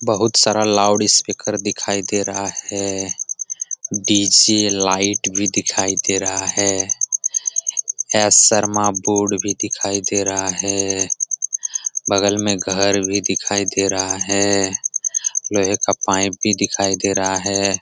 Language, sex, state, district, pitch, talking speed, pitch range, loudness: Hindi, male, Bihar, Jamui, 100 Hz, 130 wpm, 95-105 Hz, -17 LUFS